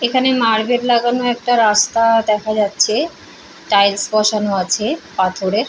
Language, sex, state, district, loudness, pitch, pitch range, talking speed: Bengali, female, West Bengal, Purulia, -15 LUFS, 215 Hz, 205-240 Hz, 115 wpm